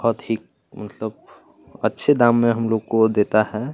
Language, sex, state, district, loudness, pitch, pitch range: Hindi, male, Chhattisgarh, Kabirdham, -20 LUFS, 115 Hz, 110-120 Hz